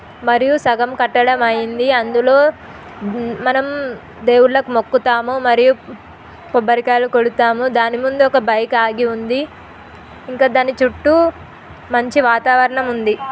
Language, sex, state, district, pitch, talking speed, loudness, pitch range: Telugu, female, Telangana, Nalgonda, 245 Hz, 105 wpm, -15 LUFS, 235-260 Hz